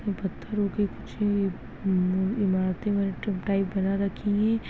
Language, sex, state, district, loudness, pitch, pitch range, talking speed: Hindi, male, Chhattisgarh, Balrampur, -27 LUFS, 200 Hz, 190-205 Hz, 115 wpm